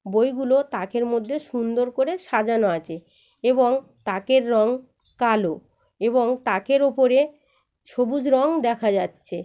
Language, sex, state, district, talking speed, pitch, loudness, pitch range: Bengali, female, West Bengal, Malda, 115 wpm, 245 Hz, -22 LUFS, 225-265 Hz